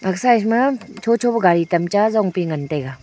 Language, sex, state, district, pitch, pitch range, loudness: Wancho, female, Arunachal Pradesh, Longding, 205 Hz, 175-230 Hz, -18 LUFS